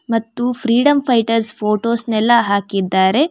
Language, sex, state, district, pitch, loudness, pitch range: Kannada, female, Karnataka, Bangalore, 230 Hz, -15 LUFS, 210-240 Hz